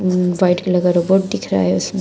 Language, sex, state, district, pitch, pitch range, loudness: Hindi, female, Uttar Pradesh, Shamli, 180 Hz, 175-185 Hz, -16 LUFS